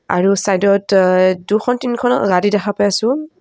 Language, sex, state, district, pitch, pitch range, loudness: Assamese, female, Assam, Kamrup Metropolitan, 205 Hz, 195-245 Hz, -15 LUFS